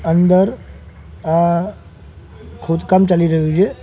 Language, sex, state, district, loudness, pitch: Gujarati, male, Gujarat, Gandhinagar, -15 LUFS, 160 Hz